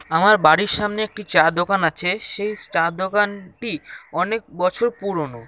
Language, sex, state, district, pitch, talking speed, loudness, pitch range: Bengali, male, West Bengal, Jhargram, 200 Hz, 140 wpm, -20 LUFS, 170-215 Hz